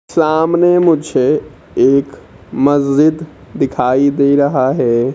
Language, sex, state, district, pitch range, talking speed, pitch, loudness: Hindi, male, Bihar, Kaimur, 135-160 Hz, 95 wpm, 140 Hz, -13 LUFS